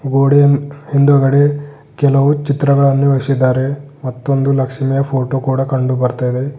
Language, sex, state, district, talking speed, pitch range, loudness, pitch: Kannada, male, Karnataka, Bidar, 100 wpm, 135-140 Hz, -14 LUFS, 140 Hz